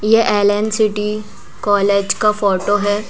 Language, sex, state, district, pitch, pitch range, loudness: Hindi, female, Madhya Pradesh, Bhopal, 205 Hz, 205-215 Hz, -16 LUFS